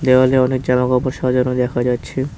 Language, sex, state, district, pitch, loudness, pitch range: Bengali, male, West Bengal, Cooch Behar, 125 Hz, -17 LUFS, 125-130 Hz